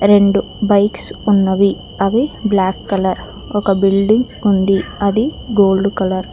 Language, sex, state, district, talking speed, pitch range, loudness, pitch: Telugu, female, Telangana, Mahabubabad, 125 wpm, 195-205 Hz, -15 LUFS, 200 Hz